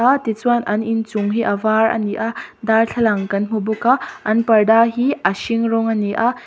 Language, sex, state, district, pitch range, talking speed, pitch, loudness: Mizo, female, Mizoram, Aizawl, 215-230 Hz, 215 wpm, 225 Hz, -18 LUFS